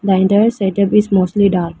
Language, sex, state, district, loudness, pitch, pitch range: English, female, Arunachal Pradesh, Lower Dibang Valley, -14 LUFS, 195 Hz, 190-205 Hz